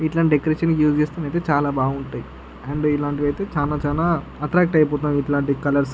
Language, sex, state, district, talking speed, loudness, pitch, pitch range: Telugu, male, Andhra Pradesh, Chittoor, 180 wpm, -21 LUFS, 145 Hz, 145-155 Hz